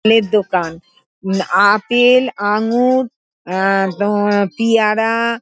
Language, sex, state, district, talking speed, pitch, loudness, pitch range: Bengali, female, West Bengal, North 24 Parganas, 90 wpm, 210 Hz, -15 LUFS, 195-230 Hz